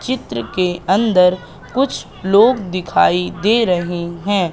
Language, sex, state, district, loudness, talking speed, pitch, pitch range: Hindi, female, Madhya Pradesh, Katni, -16 LUFS, 120 wpm, 185 Hz, 170-205 Hz